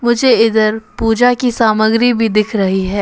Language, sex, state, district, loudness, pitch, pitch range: Hindi, female, Arunachal Pradesh, Papum Pare, -13 LUFS, 225 Hz, 215-240 Hz